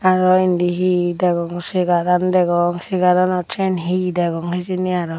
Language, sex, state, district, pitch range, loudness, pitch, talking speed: Chakma, female, Tripura, Unakoti, 175-185 Hz, -18 LUFS, 180 Hz, 160 wpm